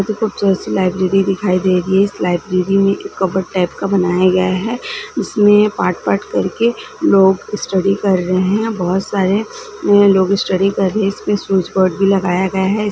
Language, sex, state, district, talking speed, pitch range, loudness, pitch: Hindi, female, Bihar, Gaya, 190 wpm, 185-205 Hz, -15 LUFS, 195 Hz